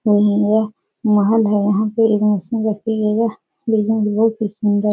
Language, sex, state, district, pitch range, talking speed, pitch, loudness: Hindi, female, Bihar, Jahanabad, 210-220 Hz, 180 wpm, 215 Hz, -17 LUFS